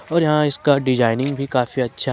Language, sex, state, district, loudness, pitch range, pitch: Hindi, male, Jharkhand, Ranchi, -18 LUFS, 125-150 Hz, 135 Hz